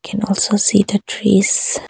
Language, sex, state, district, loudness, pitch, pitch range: English, female, Arunachal Pradesh, Longding, -15 LUFS, 205 Hz, 200-215 Hz